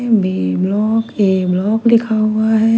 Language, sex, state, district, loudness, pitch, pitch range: Hindi, female, Punjab, Kapurthala, -15 LUFS, 215 Hz, 190-225 Hz